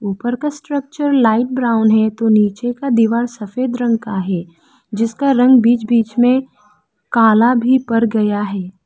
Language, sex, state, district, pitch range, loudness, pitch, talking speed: Hindi, female, Arunachal Pradesh, Lower Dibang Valley, 210-250 Hz, -15 LUFS, 230 Hz, 165 wpm